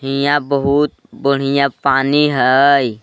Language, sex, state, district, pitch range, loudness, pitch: Magahi, male, Jharkhand, Palamu, 135-140 Hz, -14 LUFS, 140 Hz